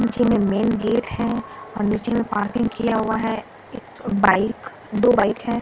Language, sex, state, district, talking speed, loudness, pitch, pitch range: Hindi, female, Bihar, Katihar, 190 wpm, -21 LUFS, 225 Hz, 210-235 Hz